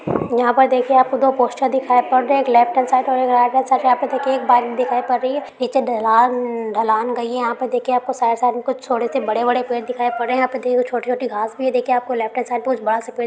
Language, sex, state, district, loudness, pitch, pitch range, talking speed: Hindi, female, Uttar Pradesh, Hamirpur, -18 LUFS, 250 Hz, 240-260 Hz, 285 wpm